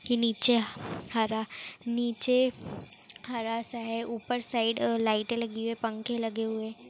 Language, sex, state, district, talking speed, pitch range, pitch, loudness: Hindi, female, Chhattisgarh, Rajnandgaon, 130 wpm, 225-235 Hz, 230 Hz, -30 LUFS